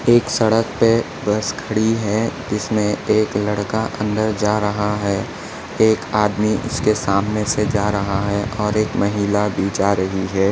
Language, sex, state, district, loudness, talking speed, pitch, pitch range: Hindi, male, Maharashtra, Nagpur, -19 LUFS, 160 wpm, 105 Hz, 100-110 Hz